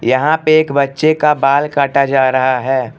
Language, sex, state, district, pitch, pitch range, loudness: Hindi, male, Arunachal Pradesh, Lower Dibang Valley, 140 Hz, 130-150 Hz, -13 LUFS